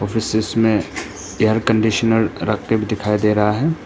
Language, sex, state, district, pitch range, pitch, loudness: Hindi, male, Arunachal Pradesh, Papum Pare, 105-115 Hz, 110 Hz, -18 LUFS